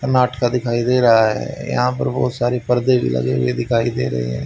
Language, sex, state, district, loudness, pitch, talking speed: Hindi, male, Haryana, Charkhi Dadri, -18 LUFS, 120 Hz, 215 wpm